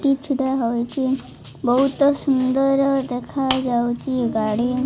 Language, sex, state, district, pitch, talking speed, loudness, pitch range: Odia, female, Odisha, Malkangiri, 260 Hz, 75 wpm, -20 LUFS, 245-275 Hz